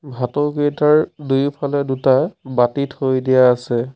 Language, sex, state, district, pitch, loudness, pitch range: Assamese, male, Assam, Sonitpur, 135 Hz, -17 LUFS, 130-145 Hz